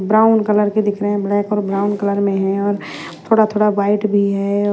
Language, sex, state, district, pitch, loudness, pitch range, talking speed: Hindi, female, Haryana, Jhajjar, 205 Hz, -16 LUFS, 200-210 Hz, 215 wpm